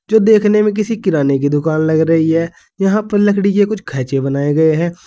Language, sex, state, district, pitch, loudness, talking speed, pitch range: Hindi, male, Uttar Pradesh, Saharanpur, 170 Hz, -14 LUFS, 225 wpm, 155-210 Hz